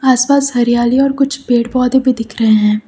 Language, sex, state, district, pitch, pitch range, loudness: Hindi, female, Uttar Pradesh, Lucknow, 250 Hz, 235-270 Hz, -13 LUFS